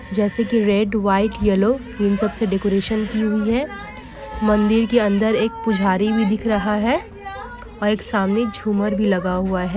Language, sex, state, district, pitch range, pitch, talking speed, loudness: Hindi, female, West Bengal, Kolkata, 205-225 Hz, 210 Hz, 180 wpm, -19 LUFS